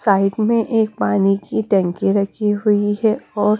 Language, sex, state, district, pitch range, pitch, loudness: Hindi, female, Punjab, Kapurthala, 195-220 Hz, 205 Hz, -18 LUFS